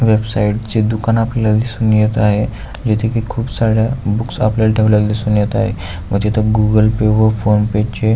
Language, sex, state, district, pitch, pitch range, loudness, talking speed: Marathi, male, Maharashtra, Aurangabad, 110 Hz, 105-110 Hz, -15 LUFS, 170 wpm